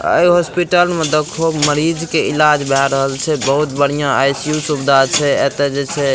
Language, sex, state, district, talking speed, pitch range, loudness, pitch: Maithili, male, Bihar, Madhepura, 185 wpm, 140-160 Hz, -15 LUFS, 150 Hz